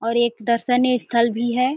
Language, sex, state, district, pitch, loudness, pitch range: Hindi, female, Chhattisgarh, Sarguja, 235 Hz, -20 LUFS, 235-250 Hz